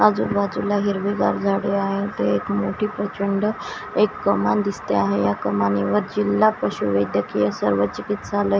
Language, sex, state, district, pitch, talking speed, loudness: Marathi, female, Maharashtra, Washim, 195 Hz, 120 wpm, -21 LUFS